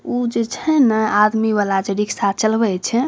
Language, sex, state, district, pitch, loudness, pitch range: Maithili, female, Bihar, Saharsa, 220 Hz, -17 LUFS, 205-230 Hz